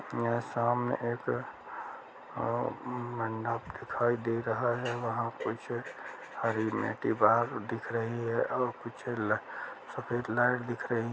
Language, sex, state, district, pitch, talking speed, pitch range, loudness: Hindi, male, Uttar Pradesh, Jalaun, 120 Hz, 135 wpm, 115-120 Hz, -33 LUFS